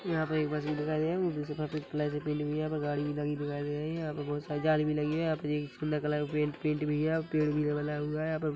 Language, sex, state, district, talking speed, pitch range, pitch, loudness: Hindi, male, Chhattisgarh, Rajnandgaon, 265 wpm, 150-155 Hz, 150 Hz, -32 LUFS